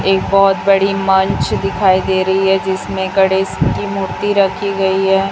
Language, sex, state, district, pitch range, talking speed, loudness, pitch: Hindi, female, Chhattisgarh, Raipur, 190-195 Hz, 170 wpm, -14 LUFS, 190 Hz